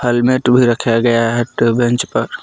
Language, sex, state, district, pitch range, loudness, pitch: Hindi, male, Jharkhand, Palamu, 115-125 Hz, -14 LUFS, 120 Hz